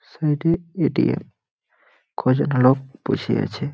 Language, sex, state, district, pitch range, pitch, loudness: Bengali, male, West Bengal, Malda, 130-160 Hz, 145 Hz, -21 LUFS